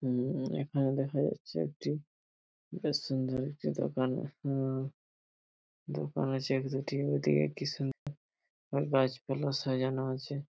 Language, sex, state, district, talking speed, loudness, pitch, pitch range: Bengali, male, West Bengal, Paschim Medinipur, 120 wpm, -34 LUFS, 135 Hz, 130-140 Hz